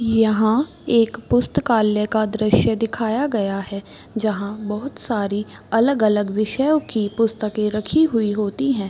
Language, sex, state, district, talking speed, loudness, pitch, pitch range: Hindi, female, Bihar, East Champaran, 135 wpm, -20 LUFS, 220 Hz, 210-230 Hz